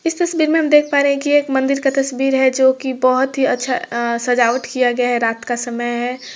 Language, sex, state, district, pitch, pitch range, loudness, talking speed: Hindi, female, Bihar, Gopalganj, 260 Hz, 245-275 Hz, -16 LUFS, 275 wpm